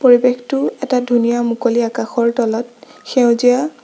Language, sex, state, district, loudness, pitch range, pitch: Assamese, female, Assam, Sonitpur, -16 LUFS, 235-255 Hz, 245 Hz